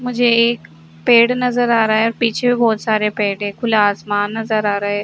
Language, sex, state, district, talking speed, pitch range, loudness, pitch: Hindi, female, Jharkhand, Sahebganj, 200 wpm, 205-235 Hz, -16 LUFS, 220 Hz